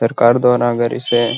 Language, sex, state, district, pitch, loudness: Magahi, male, Bihar, Gaya, 120 Hz, -14 LUFS